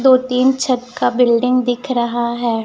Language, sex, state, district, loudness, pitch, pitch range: Hindi, male, Chhattisgarh, Raipur, -16 LUFS, 250 Hz, 240-255 Hz